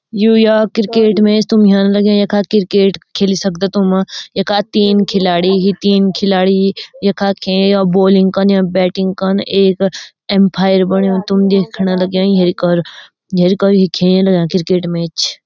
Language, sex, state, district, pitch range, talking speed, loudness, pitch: Garhwali, female, Uttarakhand, Uttarkashi, 190-200 Hz, 130 wpm, -12 LUFS, 195 Hz